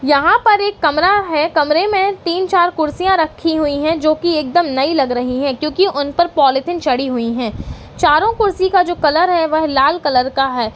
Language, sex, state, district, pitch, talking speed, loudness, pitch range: Hindi, female, Uttarakhand, Uttarkashi, 315 Hz, 205 wpm, -15 LUFS, 280-355 Hz